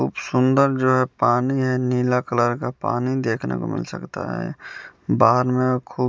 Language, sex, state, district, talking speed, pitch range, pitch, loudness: Hindi, male, Bihar, West Champaran, 175 wpm, 120-130 Hz, 125 Hz, -21 LUFS